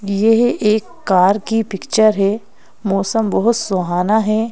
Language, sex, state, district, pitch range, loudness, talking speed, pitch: Hindi, female, Madhya Pradesh, Bhopal, 195-225 Hz, -16 LUFS, 135 wpm, 215 Hz